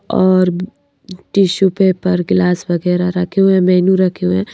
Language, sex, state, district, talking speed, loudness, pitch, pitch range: Hindi, female, Madhya Pradesh, Bhopal, 160 wpm, -14 LUFS, 185 Hz, 180-190 Hz